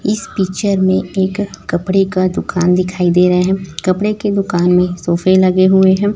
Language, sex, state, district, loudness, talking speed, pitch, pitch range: Hindi, female, Chhattisgarh, Raipur, -14 LUFS, 185 wpm, 185 Hz, 180-195 Hz